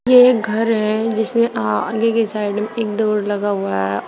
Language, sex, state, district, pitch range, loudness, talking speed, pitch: Hindi, female, Uttar Pradesh, Shamli, 205-225 Hz, -17 LUFS, 190 wpm, 215 Hz